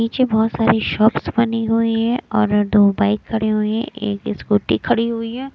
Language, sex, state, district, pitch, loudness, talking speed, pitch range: Hindi, female, Punjab, Kapurthala, 220 Hz, -18 LUFS, 195 wpm, 210-230 Hz